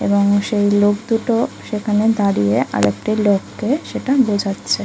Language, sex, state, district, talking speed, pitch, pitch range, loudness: Bengali, female, West Bengal, Kolkata, 135 wpm, 205 Hz, 200-225 Hz, -17 LUFS